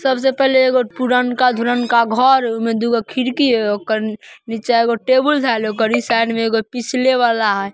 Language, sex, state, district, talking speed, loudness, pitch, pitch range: Magahi, female, Bihar, Samastipur, 180 wpm, -16 LUFS, 240 Hz, 225-255 Hz